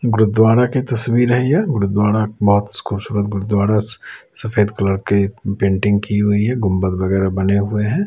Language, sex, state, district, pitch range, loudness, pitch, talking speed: Hindi, male, Chhattisgarh, Raipur, 100-110 Hz, -17 LUFS, 105 Hz, 155 wpm